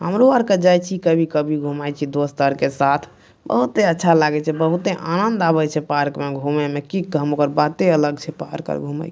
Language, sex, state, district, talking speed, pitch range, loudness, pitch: Maithili, male, Bihar, Madhepura, 235 wpm, 145-175 Hz, -19 LUFS, 155 Hz